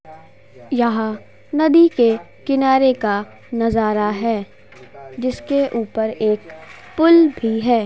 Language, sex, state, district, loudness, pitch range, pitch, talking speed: Hindi, female, Uttar Pradesh, Gorakhpur, -18 LUFS, 210-265 Hz, 230 Hz, 100 wpm